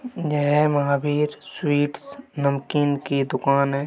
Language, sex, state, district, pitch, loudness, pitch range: Hindi, male, Bihar, Gaya, 145 Hz, -22 LUFS, 140-150 Hz